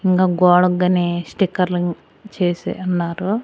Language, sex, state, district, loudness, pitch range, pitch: Telugu, female, Andhra Pradesh, Annamaya, -18 LUFS, 175-185 Hz, 180 Hz